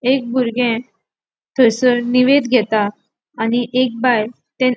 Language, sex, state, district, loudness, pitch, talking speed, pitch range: Konkani, female, Goa, North and South Goa, -16 LUFS, 245 Hz, 115 wpm, 230-255 Hz